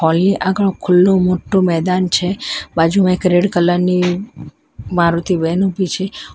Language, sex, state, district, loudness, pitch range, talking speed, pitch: Gujarati, female, Gujarat, Valsad, -15 LUFS, 175-190 Hz, 140 wpm, 180 Hz